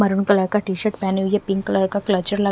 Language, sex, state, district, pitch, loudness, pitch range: Hindi, female, Haryana, Rohtak, 200 Hz, -20 LUFS, 195-205 Hz